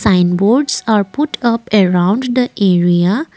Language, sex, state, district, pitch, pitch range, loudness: English, female, Assam, Kamrup Metropolitan, 210 Hz, 185-245 Hz, -13 LUFS